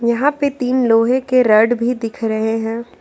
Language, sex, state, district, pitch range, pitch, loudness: Hindi, female, Jharkhand, Ranchi, 225-255 Hz, 235 Hz, -16 LUFS